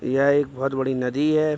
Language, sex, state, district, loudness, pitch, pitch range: Hindi, male, Bihar, Araria, -22 LUFS, 135 Hz, 130-145 Hz